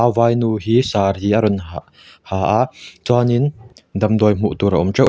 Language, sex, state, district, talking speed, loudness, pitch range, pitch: Mizo, male, Mizoram, Aizawl, 200 wpm, -17 LUFS, 100-120 Hz, 110 Hz